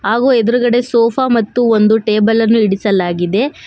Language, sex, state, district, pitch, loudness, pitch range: Kannada, female, Karnataka, Bangalore, 225 Hz, -13 LUFS, 210-240 Hz